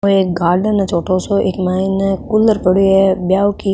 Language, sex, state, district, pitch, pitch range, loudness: Rajasthani, female, Rajasthan, Nagaur, 195 Hz, 185-200 Hz, -14 LUFS